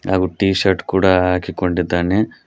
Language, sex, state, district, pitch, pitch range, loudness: Kannada, male, Karnataka, Koppal, 95 Hz, 90-95 Hz, -17 LUFS